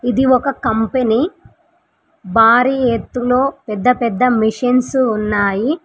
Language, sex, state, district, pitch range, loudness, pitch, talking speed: Telugu, female, Telangana, Mahabubabad, 225-260 Hz, -15 LUFS, 245 Hz, 80 wpm